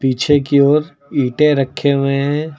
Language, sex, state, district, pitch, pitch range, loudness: Hindi, male, Uttar Pradesh, Lucknow, 140 Hz, 140-150 Hz, -15 LUFS